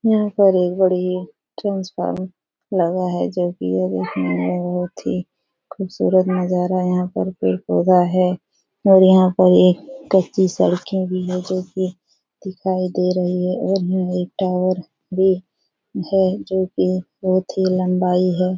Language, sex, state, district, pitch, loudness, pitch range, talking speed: Hindi, female, Bihar, Supaul, 185 Hz, -19 LUFS, 180-185 Hz, 160 wpm